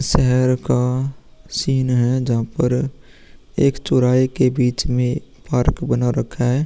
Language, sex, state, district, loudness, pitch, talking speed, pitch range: Hindi, male, Uttar Pradesh, Muzaffarnagar, -19 LUFS, 125 Hz, 145 wpm, 125-130 Hz